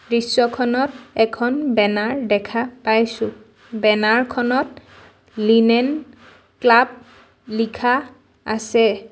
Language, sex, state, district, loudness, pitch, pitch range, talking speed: Assamese, female, Assam, Sonitpur, -19 LUFS, 235 Hz, 225-250 Hz, 65 wpm